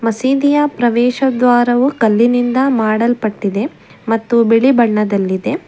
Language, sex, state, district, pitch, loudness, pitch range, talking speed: Kannada, female, Karnataka, Bangalore, 235 Hz, -13 LUFS, 220-255 Hz, 85 wpm